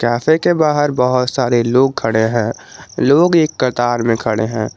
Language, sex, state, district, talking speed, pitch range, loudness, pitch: Hindi, male, Jharkhand, Garhwa, 175 wpm, 115-140 Hz, -15 LUFS, 125 Hz